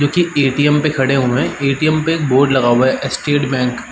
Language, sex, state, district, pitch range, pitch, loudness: Hindi, male, Uttar Pradesh, Varanasi, 130-150 Hz, 135 Hz, -15 LUFS